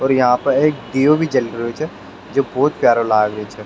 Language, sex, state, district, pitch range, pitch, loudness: Rajasthani, male, Rajasthan, Nagaur, 110-145 Hz, 125 Hz, -17 LUFS